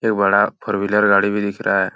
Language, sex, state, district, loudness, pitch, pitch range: Hindi, male, Uttar Pradesh, Jalaun, -17 LUFS, 100 Hz, 100-105 Hz